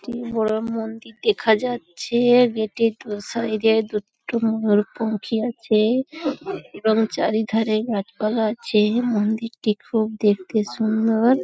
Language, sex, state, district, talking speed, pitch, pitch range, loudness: Bengali, female, West Bengal, Paschim Medinipur, 110 wpm, 225 Hz, 215-235 Hz, -21 LUFS